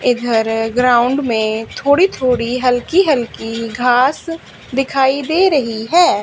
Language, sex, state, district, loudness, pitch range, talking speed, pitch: Hindi, female, Haryana, Charkhi Dadri, -15 LUFS, 230-285 Hz, 115 wpm, 250 Hz